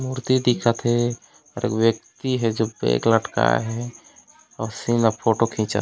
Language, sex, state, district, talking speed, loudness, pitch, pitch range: Chhattisgarhi, male, Chhattisgarh, Raigarh, 145 wpm, -22 LUFS, 120 Hz, 115-130 Hz